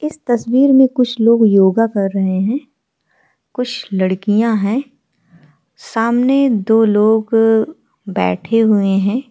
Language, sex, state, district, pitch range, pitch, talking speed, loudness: Hindi, female, Bihar, Vaishali, 195-250 Hz, 225 Hz, 120 wpm, -14 LUFS